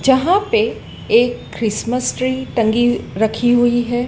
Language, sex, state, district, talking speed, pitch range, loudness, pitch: Hindi, female, Madhya Pradesh, Dhar, 130 wpm, 235-260 Hz, -17 LUFS, 245 Hz